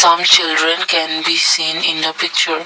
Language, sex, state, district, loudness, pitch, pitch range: English, male, Assam, Kamrup Metropolitan, -13 LUFS, 165 Hz, 160-170 Hz